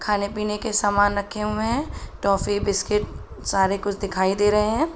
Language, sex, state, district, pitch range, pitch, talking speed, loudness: Hindi, female, Uttar Pradesh, Budaun, 200-210 Hz, 205 Hz, 170 wpm, -23 LUFS